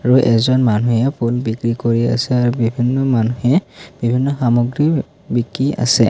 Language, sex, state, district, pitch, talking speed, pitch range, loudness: Assamese, male, Assam, Kamrup Metropolitan, 120 Hz, 140 wpm, 115-130 Hz, -16 LUFS